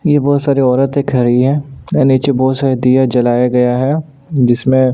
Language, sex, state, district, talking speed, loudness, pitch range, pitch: Hindi, male, Chhattisgarh, Sukma, 180 wpm, -13 LUFS, 125-140 Hz, 130 Hz